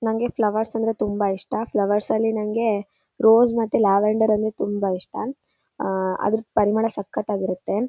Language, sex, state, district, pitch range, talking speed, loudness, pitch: Kannada, female, Karnataka, Shimoga, 205-225 Hz, 135 wpm, -22 LUFS, 215 Hz